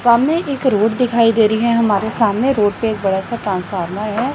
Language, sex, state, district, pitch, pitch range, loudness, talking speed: Hindi, female, Chhattisgarh, Raipur, 225 Hz, 205-235 Hz, -16 LUFS, 220 wpm